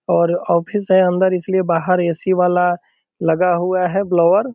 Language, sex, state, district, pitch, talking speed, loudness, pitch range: Hindi, male, Bihar, Purnia, 180 Hz, 185 wpm, -16 LUFS, 170-190 Hz